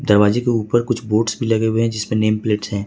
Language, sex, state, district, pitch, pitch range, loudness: Hindi, male, Jharkhand, Ranchi, 110 Hz, 105-115 Hz, -18 LUFS